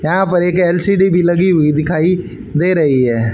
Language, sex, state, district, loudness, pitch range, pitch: Hindi, male, Haryana, Rohtak, -13 LUFS, 155-185 Hz, 175 Hz